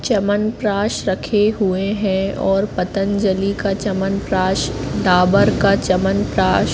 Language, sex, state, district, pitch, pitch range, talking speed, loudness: Hindi, female, Madhya Pradesh, Katni, 195 Hz, 190-205 Hz, 105 wpm, -18 LUFS